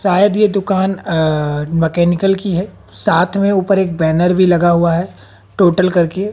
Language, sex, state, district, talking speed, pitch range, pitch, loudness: Hindi, female, Haryana, Jhajjar, 180 wpm, 165-195 Hz, 180 Hz, -14 LUFS